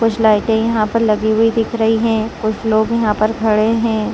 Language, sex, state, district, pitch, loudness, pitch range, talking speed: Hindi, female, Chhattisgarh, Rajnandgaon, 220 Hz, -15 LUFS, 215-225 Hz, 215 wpm